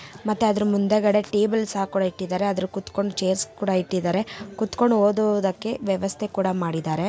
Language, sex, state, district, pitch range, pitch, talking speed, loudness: Kannada, male, Karnataka, Mysore, 190-210 Hz, 200 Hz, 150 wpm, -23 LUFS